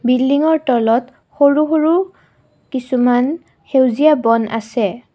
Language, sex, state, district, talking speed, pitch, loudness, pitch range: Assamese, female, Assam, Kamrup Metropolitan, 95 wpm, 260 Hz, -15 LUFS, 240-305 Hz